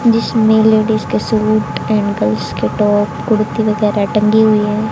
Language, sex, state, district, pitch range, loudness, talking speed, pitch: Hindi, female, Haryana, Jhajjar, 210-220 Hz, -14 LUFS, 160 wpm, 215 Hz